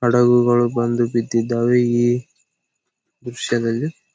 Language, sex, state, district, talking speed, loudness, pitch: Kannada, male, Karnataka, Gulbarga, 85 wpm, -18 LUFS, 120 Hz